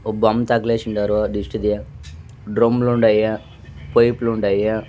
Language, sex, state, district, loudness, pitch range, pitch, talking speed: Telugu, male, Andhra Pradesh, Sri Satya Sai, -19 LUFS, 105-115 Hz, 110 Hz, 85 wpm